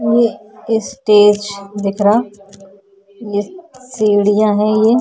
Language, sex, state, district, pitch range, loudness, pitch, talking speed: Hindi, female, Uttar Pradesh, Budaun, 200-225 Hz, -14 LUFS, 210 Hz, 110 wpm